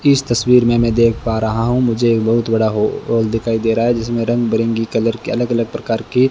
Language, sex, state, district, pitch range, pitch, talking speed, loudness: Hindi, male, Rajasthan, Bikaner, 115-120 Hz, 115 Hz, 245 wpm, -16 LUFS